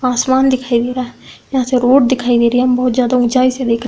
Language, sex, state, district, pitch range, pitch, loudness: Hindi, female, Uttar Pradesh, Budaun, 245-255 Hz, 250 Hz, -14 LUFS